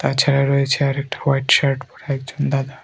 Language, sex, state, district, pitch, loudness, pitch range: Bengali, male, Tripura, Unakoti, 140 Hz, -19 LUFS, 135-140 Hz